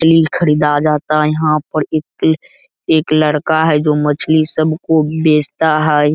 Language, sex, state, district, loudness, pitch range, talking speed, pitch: Hindi, male, Bihar, Araria, -14 LUFS, 150-160 Hz, 135 wpm, 155 Hz